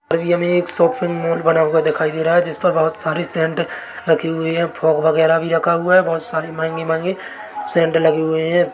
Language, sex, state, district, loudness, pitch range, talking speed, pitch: Hindi, male, Chhattisgarh, Bilaspur, -17 LUFS, 160-175 Hz, 220 wpm, 165 Hz